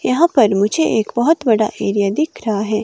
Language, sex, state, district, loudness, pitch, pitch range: Hindi, female, Himachal Pradesh, Shimla, -16 LUFS, 220 Hz, 205-250 Hz